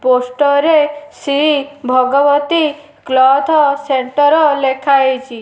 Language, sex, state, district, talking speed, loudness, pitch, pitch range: Odia, female, Odisha, Nuapada, 90 wpm, -13 LUFS, 285 Hz, 265-295 Hz